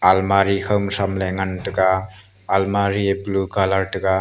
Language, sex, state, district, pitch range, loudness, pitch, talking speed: Wancho, male, Arunachal Pradesh, Longding, 95-100 Hz, -20 LUFS, 95 Hz, 145 wpm